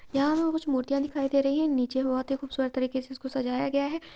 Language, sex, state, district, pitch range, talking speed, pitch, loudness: Maithili, female, Bihar, Purnia, 260-280 Hz, 275 wpm, 275 Hz, -28 LUFS